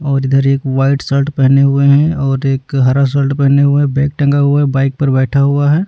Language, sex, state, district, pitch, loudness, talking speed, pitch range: Hindi, male, Delhi, New Delhi, 140 Hz, -12 LUFS, 245 wpm, 135-140 Hz